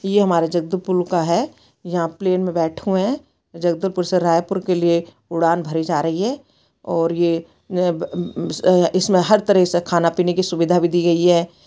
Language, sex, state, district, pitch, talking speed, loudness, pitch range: Hindi, female, Chhattisgarh, Bastar, 175 Hz, 195 wpm, -19 LUFS, 170-185 Hz